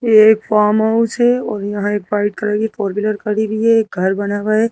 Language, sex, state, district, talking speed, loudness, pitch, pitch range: Hindi, female, Madhya Pradesh, Bhopal, 265 wpm, -16 LUFS, 215 Hz, 205-220 Hz